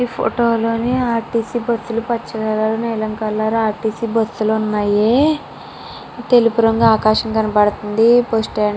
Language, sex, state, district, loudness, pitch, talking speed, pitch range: Telugu, female, Andhra Pradesh, Srikakulam, -17 LUFS, 225 Hz, 145 wpm, 215-235 Hz